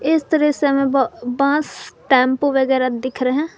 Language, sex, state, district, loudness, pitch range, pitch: Hindi, female, Jharkhand, Garhwa, -18 LUFS, 260-290 Hz, 275 Hz